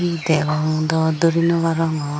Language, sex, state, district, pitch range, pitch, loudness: Chakma, female, Tripura, Dhalai, 155-165 Hz, 160 Hz, -19 LUFS